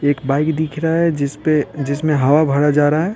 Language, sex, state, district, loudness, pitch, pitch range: Hindi, male, Bihar, Patna, -17 LUFS, 150 Hz, 145-155 Hz